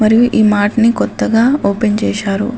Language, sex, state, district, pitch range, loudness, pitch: Telugu, female, Telangana, Adilabad, 205-235 Hz, -13 LUFS, 220 Hz